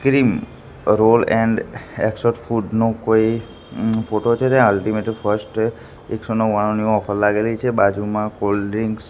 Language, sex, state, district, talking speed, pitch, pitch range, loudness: Gujarati, male, Gujarat, Gandhinagar, 125 wpm, 110 Hz, 105-115 Hz, -19 LUFS